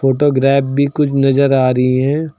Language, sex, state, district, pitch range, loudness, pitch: Hindi, male, Uttar Pradesh, Lucknow, 135-140 Hz, -14 LUFS, 135 Hz